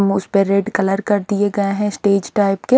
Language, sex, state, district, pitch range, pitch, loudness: Hindi, female, Haryana, Charkhi Dadri, 195-205 Hz, 200 Hz, -17 LUFS